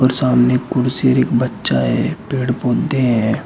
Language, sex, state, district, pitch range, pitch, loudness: Hindi, male, Uttar Pradesh, Shamli, 120-130 Hz, 125 Hz, -16 LUFS